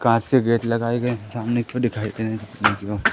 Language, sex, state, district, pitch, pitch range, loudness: Hindi, male, Madhya Pradesh, Katni, 115 Hz, 110-120 Hz, -22 LUFS